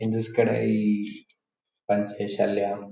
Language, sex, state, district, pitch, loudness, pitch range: Kannada, male, Karnataka, Shimoga, 105 Hz, -25 LUFS, 100-110 Hz